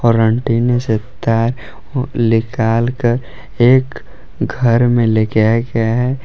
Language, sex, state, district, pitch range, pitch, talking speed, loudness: Hindi, male, Jharkhand, Palamu, 115-125 Hz, 115 Hz, 135 wpm, -15 LUFS